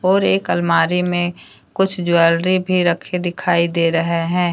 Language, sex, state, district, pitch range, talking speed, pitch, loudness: Hindi, female, Jharkhand, Deoghar, 170-180 Hz, 160 wpm, 175 Hz, -17 LUFS